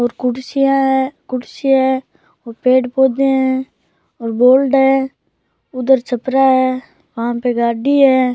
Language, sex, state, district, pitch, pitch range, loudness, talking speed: Rajasthani, male, Rajasthan, Churu, 260 Hz, 250-270 Hz, -15 LUFS, 135 wpm